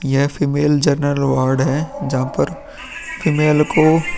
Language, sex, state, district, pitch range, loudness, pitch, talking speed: Hindi, male, Uttar Pradesh, Muzaffarnagar, 135-150 Hz, -17 LUFS, 145 Hz, 145 wpm